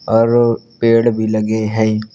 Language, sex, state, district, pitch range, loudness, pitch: Hindi, male, Uttar Pradesh, Lucknow, 110-115 Hz, -15 LUFS, 110 Hz